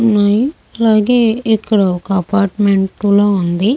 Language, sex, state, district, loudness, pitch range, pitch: Telugu, female, Andhra Pradesh, Krishna, -14 LUFS, 195-225 Hz, 205 Hz